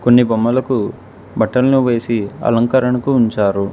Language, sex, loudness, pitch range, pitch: Telugu, male, -15 LUFS, 115-130 Hz, 120 Hz